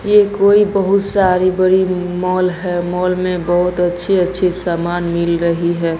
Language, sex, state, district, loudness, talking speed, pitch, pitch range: Hindi, female, Bihar, Katihar, -15 LUFS, 160 wpm, 180 Hz, 175-190 Hz